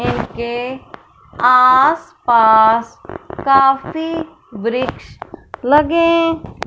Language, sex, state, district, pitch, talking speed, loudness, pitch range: Hindi, female, Punjab, Fazilka, 255 Hz, 45 wpm, -14 LUFS, 235-315 Hz